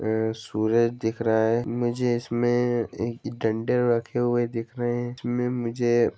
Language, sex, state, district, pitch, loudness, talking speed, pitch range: Hindi, male, Jharkhand, Sahebganj, 120 Hz, -25 LUFS, 155 wpm, 115-120 Hz